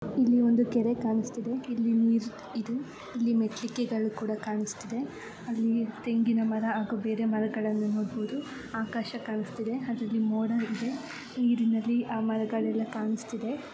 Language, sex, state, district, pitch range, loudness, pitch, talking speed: Kannada, female, Karnataka, Shimoga, 220-240 Hz, -30 LUFS, 230 Hz, 120 wpm